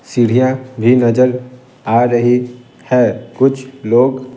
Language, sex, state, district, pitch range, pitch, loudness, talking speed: Hindi, male, Bihar, Patna, 120-130 Hz, 125 Hz, -14 LUFS, 125 wpm